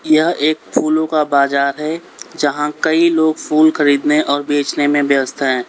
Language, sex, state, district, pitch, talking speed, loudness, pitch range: Hindi, male, Uttar Pradesh, Lalitpur, 150 Hz, 170 wpm, -15 LUFS, 145-155 Hz